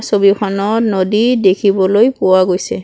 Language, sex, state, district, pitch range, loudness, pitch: Assamese, female, Assam, Kamrup Metropolitan, 190-220 Hz, -13 LUFS, 200 Hz